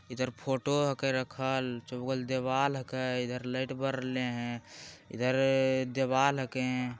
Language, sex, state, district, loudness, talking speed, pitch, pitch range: Magahi, male, Bihar, Jamui, -31 LUFS, 130 wpm, 130 Hz, 125-135 Hz